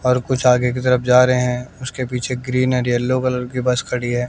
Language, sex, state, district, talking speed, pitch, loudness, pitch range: Hindi, male, Bihar, West Champaran, 250 wpm, 125 Hz, -18 LUFS, 125-130 Hz